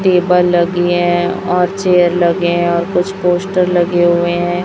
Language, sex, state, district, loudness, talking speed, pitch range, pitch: Hindi, female, Chhattisgarh, Raipur, -13 LUFS, 170 wpm, 175-180 Hz, 175 Hz